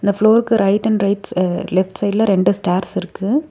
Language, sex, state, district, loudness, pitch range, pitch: Tamil, female, Tamil Nadu, Nilgiris, -17 LUFS, 190-215 Hz, 200 Hz